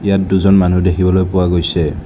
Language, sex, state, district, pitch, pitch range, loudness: Assamese, male, Assam, Kamrup Metropolitan, 90 Hz, 90-95 Hz, -13 LUFS